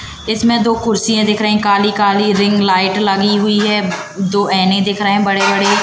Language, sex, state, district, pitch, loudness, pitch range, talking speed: Hindi, female, Madhya Pradesh, Katni, 205 Hz, -13 LUFS, 200-210 Hz, 185 wpm